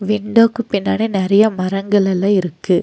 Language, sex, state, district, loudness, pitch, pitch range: Tamil, female, Tamil Nadu, Nilgiris, -16 LUFS, 200 Hz, 190-210 Hz